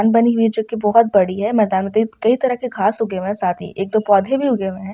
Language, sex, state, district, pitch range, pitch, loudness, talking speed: Hindi, female, Uttar Pradesh, Ghazipur, 195-230 Hz, 215 Hz, -17 LUFS, 305 wpm